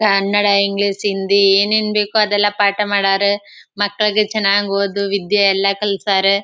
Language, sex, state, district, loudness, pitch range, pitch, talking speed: Kannada, female, Karnataka, Chamarajanagar, -15 LUFS, 200-210 Hz, 200 Hz, 140 wpm